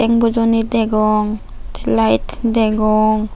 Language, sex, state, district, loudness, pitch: Chakma, female, Tripura, Unakoti, -15 LUFS, 215 Hz